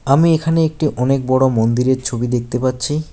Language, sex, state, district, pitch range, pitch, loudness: Bengali, male, West Bengal, Alipurduar, 125-150 Hz, 130 Hz, -16 LUFS